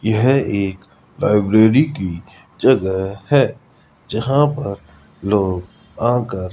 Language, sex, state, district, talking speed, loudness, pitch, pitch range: Hindi, male, Rajasthan, Jaipur, 100 wpm, -17 LUFS, 100 Hz, 95-120 Hz